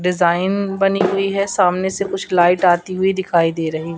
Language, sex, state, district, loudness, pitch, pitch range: Hindi, female, Madhya Pradesh, Katni, -17 LUFS, 185 Hz, 175-195 Hz